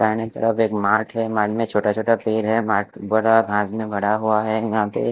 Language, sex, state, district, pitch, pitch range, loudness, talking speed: Hindi, male, Chandigarh, Chandigarh, 110 Hz, 105-110 Hz, -20 LUFS, 210 wpm